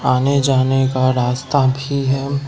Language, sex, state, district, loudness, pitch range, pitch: Hindi, male, Bihar, Katihar, -17 LUFS, 130-140 Hz, 135 Hz